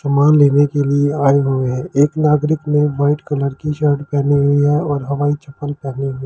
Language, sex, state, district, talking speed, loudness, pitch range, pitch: Hindi, male, Delhi, New Delhi, 210 wpm, -16 LUFS, 140-145 Hz, 145 Hz